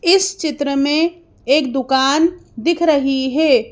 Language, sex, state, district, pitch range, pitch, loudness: Hindi, female, Madhya Pradesh, Bhopal, 275-340 Hz, 305 Hz, -16 LUFS